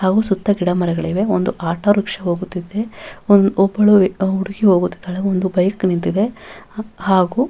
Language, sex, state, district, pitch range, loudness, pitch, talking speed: Kannada, female, Karnataka, Bellary, 180-205 Hz, -17 LUFS, 195 Hz, 110 wpm